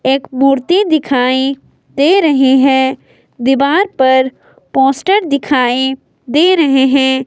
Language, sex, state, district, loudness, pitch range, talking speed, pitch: Hindi, female, Himachal Pradesh, Shimla, -12 LUFS, 265-295 Hz, 105 wpm, 270 Hz